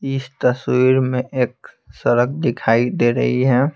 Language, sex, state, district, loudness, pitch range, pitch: Hindi, male, Bihar, Patna, -18 LUFS, 125-130 Hz, 125 Hz